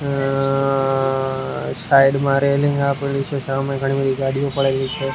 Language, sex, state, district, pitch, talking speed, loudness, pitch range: Gujarati, male, Gujarat, Gandhinagar, 135 Hz, 140 wpm, -19 LUFS, 135-140 Hz